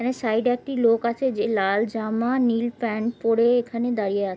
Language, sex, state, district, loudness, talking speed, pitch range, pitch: Bengali, female, West Bengal, Purulia, -23 LUFS, 190 wpm, 220-245 Hz, 230 Hz